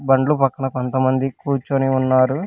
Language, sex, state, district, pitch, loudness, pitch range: Telugu, male, Telangana, Hyderabad, 135 Hz, -19 LUFS, 130-135 Hz